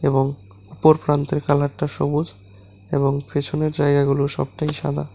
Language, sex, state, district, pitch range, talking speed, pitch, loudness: Bengali, male, Tripura, West Tripura, 135-150 Hz, 115 wpm, 145 Hz, -21 LUFS